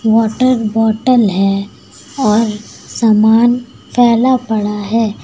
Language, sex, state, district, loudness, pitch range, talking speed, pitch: Hindi, female, Uttar Pradesh, Lucknow, -13 LUFS, 210-245 Hz, 90 wpm, 225 Hz